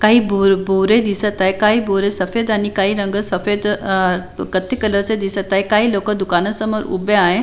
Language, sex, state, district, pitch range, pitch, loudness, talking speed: Marathi, female, Maharashtra, Chandrapur, 195-215 Hz, 200 Hz, -17 LUFS, 185 wpm